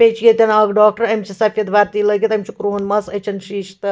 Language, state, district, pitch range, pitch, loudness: Kashmiri, Punjab, Kapurthala, 205-215 Hz, 210 Hz, -16 LUFS